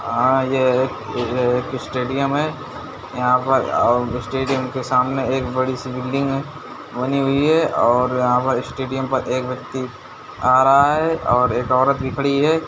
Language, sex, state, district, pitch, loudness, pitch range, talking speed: Hindi, male, Bihar, Gopalganj, 130 Hz, -19 LUFS, 125-135 Hz, 160 wpm